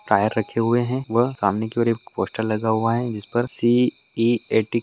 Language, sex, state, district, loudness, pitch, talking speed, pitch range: Hindi, male, Maharashtra, Solapur, -22 LUFS, 115 Hz, 200 wpm, 110-120 Hz